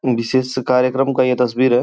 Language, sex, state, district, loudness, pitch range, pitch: Hindi, male, Uttar Pradesh, Gorakhpur, -17 LUFS, 125-130 Hz, 125 Hz